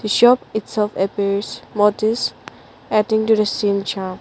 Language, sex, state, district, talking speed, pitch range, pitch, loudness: English, female, Nagaland, Dimapur, 130 wpm, 200-220 Hz, 210 Hz, -19 LUFS